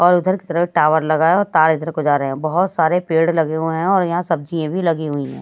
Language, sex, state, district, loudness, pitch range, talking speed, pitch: Hindi, female, Haryana, Jhajjar, -17 LUFS, 155-175 Hz, 300 wpm, 165 Hz